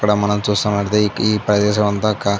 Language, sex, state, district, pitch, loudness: Telugu, male, Andhra Pradesh, Chittoor, 105 Hz, -17 LUFS